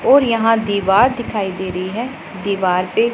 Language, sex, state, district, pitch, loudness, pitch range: Hindi, female, Punjab, Pathankot, 205 Hz, -17 LUFS, 190-235 Hz